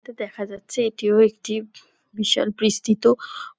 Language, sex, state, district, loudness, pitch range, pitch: Bengali, female, West Bengal, Dakshin Dinajpur, -21 LUFS, 215-225 Hz, 215 Hz